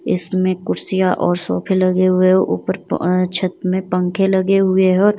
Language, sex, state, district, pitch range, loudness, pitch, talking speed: Hindi, female, Himachal Pradesh, Shimla, 180-190 Hz, -17 LUFS, 185 Hz, 160 wpm